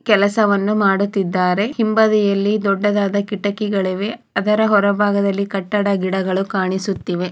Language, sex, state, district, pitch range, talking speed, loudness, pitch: Kannada, female, Karnataka, Chamarajanagar, 195-210 Hz, 80 wpm, -17 LUFS, 200 Hz